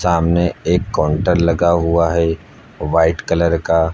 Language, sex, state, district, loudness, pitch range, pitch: Hindi, male, Uttar Pradesh, Lucknow, -16 LUFS, 80-85 Hz, 85 Hz